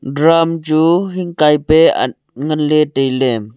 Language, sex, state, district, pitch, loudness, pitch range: Wancho, male, Arunachal Pradesh, Longding, 155 Hz, -13 LUFS, 135-165 Hz